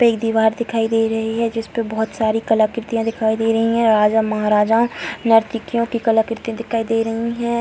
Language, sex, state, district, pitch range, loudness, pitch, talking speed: Hindi, female, Bihar, Muzaffarpur, 220-230 Hz, -18 LUFS, 225 Hz, 190 wpm